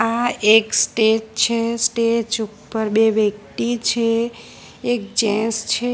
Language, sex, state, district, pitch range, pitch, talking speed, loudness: Gujarati, female, Gujarat, Valsad, 220-235 Hz, 230 Hz, 120 wpm, -19 LUFS